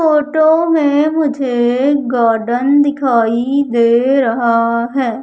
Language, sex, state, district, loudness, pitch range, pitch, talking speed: Hindi, female, Madhya Pradesh, Umaria, -13 LUFS, 235-290 Hz, 260 Hz, 90 wpm